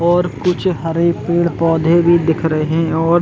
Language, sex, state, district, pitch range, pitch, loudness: Hindi, male, Chhattisgarh, Bastar, 160-170 Hz, 170 Hz, -15 LUFS